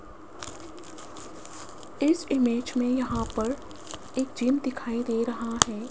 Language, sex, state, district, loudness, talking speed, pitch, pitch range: Hindi, female, Rajasthan, Jaipur, -27 LUFS, 110 wpm, 245 Hz, 235-265 Hz